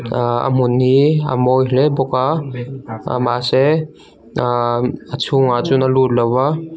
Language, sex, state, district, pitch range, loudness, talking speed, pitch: Mizo, male, Mizoram, Aizawl, 120-135 Hz, -16 LUFS, 170 wpm, 130 Hz